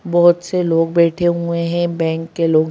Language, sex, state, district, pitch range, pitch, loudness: Hindi, female, Madhya Pradesh, Bhopal, 165-175 Hz, 170 Hz, -16 LUFS